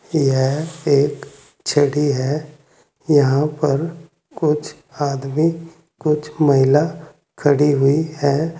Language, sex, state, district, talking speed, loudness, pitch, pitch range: Hindi, male, Uttar Pradesh, Saharanpur, 90 wpm, -18 LUFS, 150 Hz, 140-155 Hz